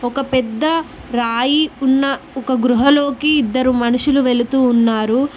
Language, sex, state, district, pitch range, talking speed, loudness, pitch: Telugu, female, Telangana, Mahabubabad, 245-280 Hz, 110 wpm, -16 LUFS, 260 Hz